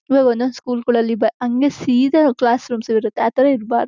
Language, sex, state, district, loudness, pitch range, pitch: Kannada, female, Karnataka, Shimoga, -17 LUFS, 235-260 Hz, 245 Hz